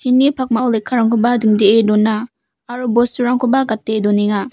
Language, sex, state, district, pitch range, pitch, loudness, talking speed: Garo, female, Meghalaya, West Garo Hills, 215-250 Hz, 235 Hz, -15 LUFS, 105 wpm